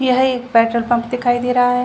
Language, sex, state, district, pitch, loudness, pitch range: Hindi, female, Chhattisgarh, Rajnandgaon, 245 Hz, -16 LUFS, 240-250 Hz